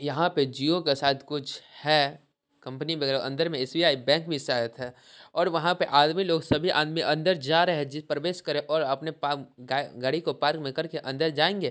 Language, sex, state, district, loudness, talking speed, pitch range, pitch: Hindi, male, Bihar, Sitamarhi, -26 LUFS, 210 wpm, 140-165 Hz, 150 Hz